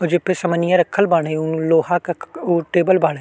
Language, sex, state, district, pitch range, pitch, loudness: Bhojpuri, male, Uttar Pradesh, Deoria, 165-180 Hz, 175 Hz, -18 LUFS